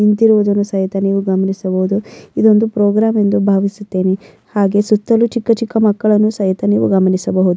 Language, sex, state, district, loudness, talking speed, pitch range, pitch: Kannada, female, Karnataka, Mysore, -14 LUFS, 125 wpm, 195-215 Hz, 205 Hz